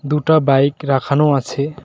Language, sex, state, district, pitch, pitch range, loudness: Bengali, male, West Bengal, Cooch Behar, 140 Hz, 140-150 Hz, -16 LUFS